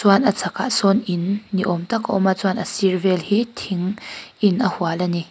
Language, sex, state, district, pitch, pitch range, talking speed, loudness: Mizo, female, Mizoram, Aizawl, 195 Hz, 180-205 Hz, 235 wpm, -20 LUFS